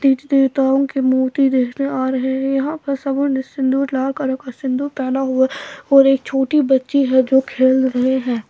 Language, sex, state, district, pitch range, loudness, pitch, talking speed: Hindi, female, Bihar, Patna, 260-275 Hz, -17 LUFS, 265 Hz, 190 wpm